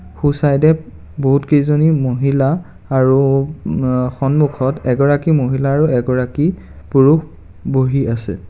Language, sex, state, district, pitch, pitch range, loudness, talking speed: Assamese, male, Assam, Kamrup Metropolitan, 135 Hz, 130-150 Hz, -15 LUFS, 115 wpm